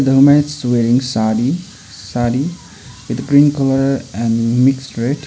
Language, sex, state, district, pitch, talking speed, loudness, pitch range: English, male, Sikkim, Gangtok, 125 Hz, 135 wpm, -15 LUFS, 115-135 Hz